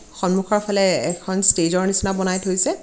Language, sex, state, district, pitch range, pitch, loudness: Assamese, female, Assam, Kamrup Metropolitan, 185-195 Hz, 190 Hz, -19 LUFS